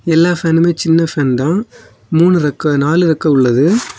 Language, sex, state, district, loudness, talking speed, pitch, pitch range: Tamil, male, Tamil Nadu, Kanyakumari, -13 LUFS, 150 wpm, 165 Hz, 150-170 Hz